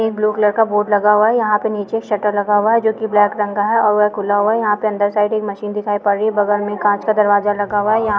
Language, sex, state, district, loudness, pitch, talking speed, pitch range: Hindi, female, Goa, North and South Goa, -16 LUFS, 210 Hz, 300 wpm, 205-215 Hz